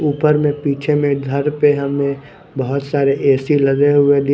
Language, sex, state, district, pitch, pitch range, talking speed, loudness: Hindi, male, Chandigarh, Chandigarh, 140 Hz, 140-145 Hz, 195 wpm, -16 LUFS